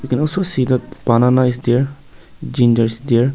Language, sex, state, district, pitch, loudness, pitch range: English, male, Nagaland, Kohima, 125 Hz, -16 LUFS, 120-140 Hz